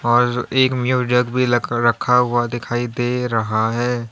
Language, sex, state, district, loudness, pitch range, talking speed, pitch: Hindi, male, Uttar Pradesh, Lalitpur, -18 LUFS, 120-125 Hz, 160 wpm, 120 Hz